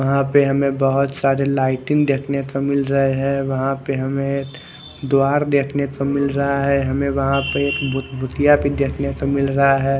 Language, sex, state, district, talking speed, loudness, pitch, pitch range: Hindi, male, Odisha, Khordha, 190 wpm, -19 LUFS, 140 Hz, 135-140 Hz